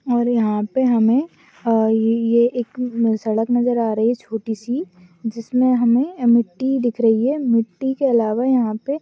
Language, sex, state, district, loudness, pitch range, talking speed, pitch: Hindi, female, Bihar, Kishanganj, -19 LUFS, 225-250 Hz, 175 wpm, 235 Hz